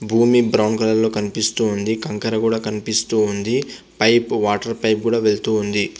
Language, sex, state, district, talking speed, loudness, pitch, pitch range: Telugu, male, Andhra Pradesh, Visakhapatnam, 160 wpm, -19 LUFS, 110 Hz, 105-115 Hz